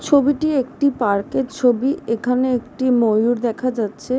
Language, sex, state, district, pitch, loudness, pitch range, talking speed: Bengali, female, West Bengal, Jhargram, 255 Hz, -19 LUFS, 235-270 Hz, 155 wpm